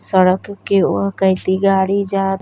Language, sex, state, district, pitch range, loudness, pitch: Bhojpuri, female, Uttar Pradesh, Deoria, 190-195 Hz, -16 LUFS, 195 Hz